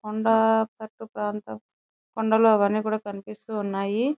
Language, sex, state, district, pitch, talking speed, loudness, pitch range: Telugu, female, Andhra Pradesh, Chittoor, 215 Hz, 100 wpm, -24 LUFS, 195-220 Hz